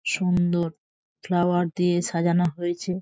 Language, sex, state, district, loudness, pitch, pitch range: Bengali, female, West Bengal, Jhargram, -24 LUFS, 175 Hz, 170-180 Hz